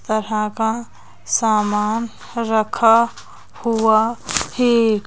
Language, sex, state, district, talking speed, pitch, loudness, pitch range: Hindi, female, Madhya Pradesh, Bhopal, 70 wpm, 225 Hz, -18 LUFS, 215-230 Hz